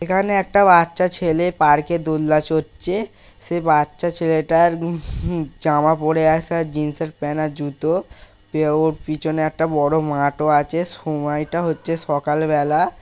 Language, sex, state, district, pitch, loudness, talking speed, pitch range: Bengali, male, West Bengal, Paschim Medinipur, 155 Hz, -19 LUFS, 125 wpm, 150-170 Hz